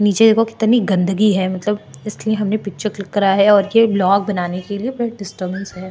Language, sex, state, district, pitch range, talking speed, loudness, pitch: Hindi, female, Maharashtra, Chandrapur, 190-220 Hz, 205 wpm, -17 LUFS, 205 Hz